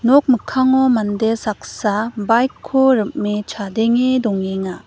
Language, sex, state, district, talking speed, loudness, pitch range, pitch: Garo, female, Meghalaya, West Garo Hills, 100 wpm, -17 LUFS, 210-255 Hz, 225 Hz